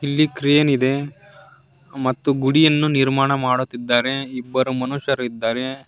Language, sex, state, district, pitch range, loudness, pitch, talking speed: Kannada, male, Karnataka, Koppal, 130-140 Hz, -19 LUFS, 135 Hz, 90 wpm